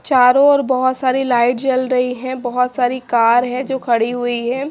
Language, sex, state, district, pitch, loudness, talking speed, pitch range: Hindi, female, Haryana, Charkhi Dadri, 250 Hz, -16 LUFS, 205 wpm, 245-260 Hz